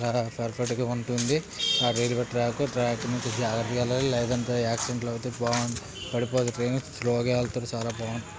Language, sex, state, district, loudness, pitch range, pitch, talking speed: Telugu, male, Andhra Pradesh, Chittoor, -28 LUFS, 120-125 Hz, 120 Hz, 135 wpm